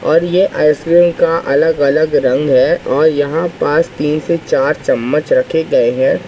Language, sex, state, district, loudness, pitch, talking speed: Hindi, male, Madhya Pradesh, Katni, -13 LUFS, 180 Hz, 160 wpm